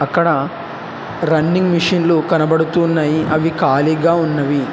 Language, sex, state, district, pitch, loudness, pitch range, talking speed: Telugu, male, Telangana, Hyderabad, 160 Hz, -15 LUFS, 155-170 Hz, 90 wpm